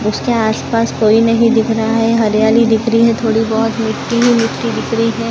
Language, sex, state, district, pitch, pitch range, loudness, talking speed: Hindi, female, Maharashtra, Gondia, 225 Hz, 225-230 Hz, -13 LUFS, 225 wpm